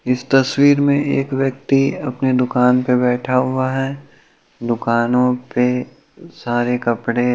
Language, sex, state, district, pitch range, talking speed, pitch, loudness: Hindi, male, Uttar Pradesh, Hamirpur, 125-135 Hz, 120 wpm, 125 Hz, -17 LUFS